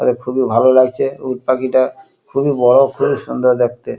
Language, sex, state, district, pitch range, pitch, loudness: Bengali, male, West Bengal, Kolkata, 125-135 Hz, 130 Hz, -15 LUFS